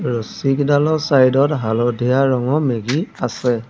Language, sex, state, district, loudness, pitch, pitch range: Assamese, male, Assam, Sonitpur, -17 LUFS, 130 Hz, 120-145 Hz